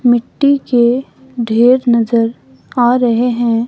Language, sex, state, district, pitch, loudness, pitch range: Hindi, female, Himachal Pradesh, Shimla, 240 Hz, -13 LUFS, 235-250 Hz